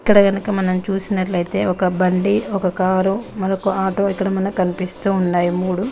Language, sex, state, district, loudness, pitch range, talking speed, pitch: Telugu, female, Telangana, Mahabubabad, -19 LUFS, 185-195 Hz, 140 wpm, 190 Hz